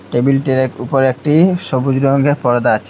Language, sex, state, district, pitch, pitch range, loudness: Bengali, male, Assam, Hailakandi, 135 Hz, 130-140 Hz, -14 LUFS